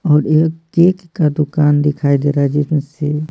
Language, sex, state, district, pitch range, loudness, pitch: Hindi, male, Bihar, Patna, 145-160 Hz, -15 LUFS, 150 Hz